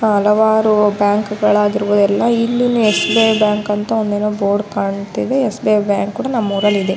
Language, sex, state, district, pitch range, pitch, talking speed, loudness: Kannada, female, Karnataka, Raichur, 205-220 Hz, 210 Hz, 120 wpm, -15 LUFS